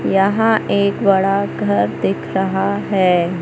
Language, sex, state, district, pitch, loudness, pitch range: Hindi, male, Madhya Pradesh, Katni, 190 Hz, -16 LUFS, 170-200 Hz